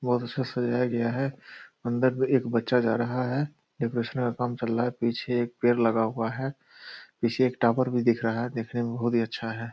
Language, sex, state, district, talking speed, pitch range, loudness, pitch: Hindi, male, Bihar, Purnia, 235 wpm, 115-125 Hz, -27 LUFS, 120 Hz